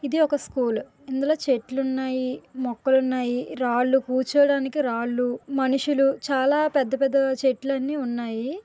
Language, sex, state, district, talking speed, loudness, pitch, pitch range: Telugu, female, Andhra Pradesh, Visakhapatnam, 120 wpm, -24 LUFS, 265 Hz, 255-280 Hz